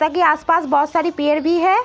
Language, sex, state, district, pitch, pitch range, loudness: Hindi, female, Uttar Pradesh, Etah, 330 Hz, 300-340 Hz, -17 LUFS